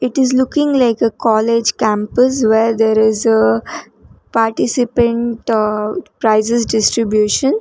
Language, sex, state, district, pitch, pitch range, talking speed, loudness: English, female, Karnataka, Bangalore, 230 Hz, 220-245 Hz, 110 wpm, -14 LUFS